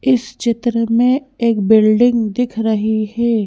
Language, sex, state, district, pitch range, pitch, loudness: Hindi, female, Madhya Pradesh, Bhopal, 220-245 Hz, 230 Hz, -15 LUFS